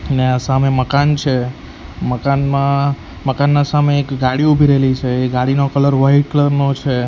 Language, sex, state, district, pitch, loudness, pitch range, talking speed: Gujarati, male, Gujarat, Valsad, 140 Hz, -15 LUFS, 130-140 Hz, 170 wpm